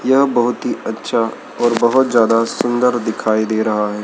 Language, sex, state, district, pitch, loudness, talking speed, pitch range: Hindi, male, Madhya Pradesh, Dhar, 120 Hz, -16 LUFS, 180 wpm, 110-125 Hz